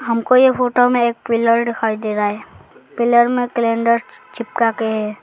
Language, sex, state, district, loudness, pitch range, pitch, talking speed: Hindi, male, Arunachal Pradesh, Lower Dibang Valley, -16 LUFS, 225-245 Hz, 235 Hz, 195 wpm